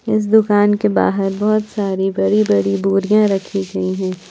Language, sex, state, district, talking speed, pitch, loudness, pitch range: Hindi, female, Jharkhand, Palamu, 165 wpm, 195 Hz, -16 LUFS, 185-210 Hz